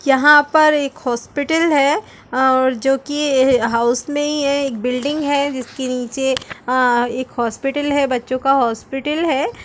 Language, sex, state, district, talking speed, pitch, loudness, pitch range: Hindi, female, Chhattisgarh, Raigarh, 155 wpm, 270 Hz, -17 LUFS, 255-290 Hz